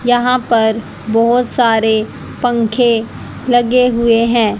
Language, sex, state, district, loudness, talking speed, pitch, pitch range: Hindi, female, Haryana, Jhajjar, -13 LUFS, 105 wpm, 235 Hz, 225-245 Hz